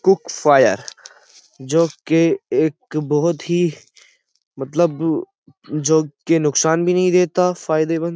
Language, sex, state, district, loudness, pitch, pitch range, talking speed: Hindi, male, Uttar Pradesh, Jyotiba Phule Nagar, -18 LUFS, 165 Hz, 155-180 Hz, 125 wpm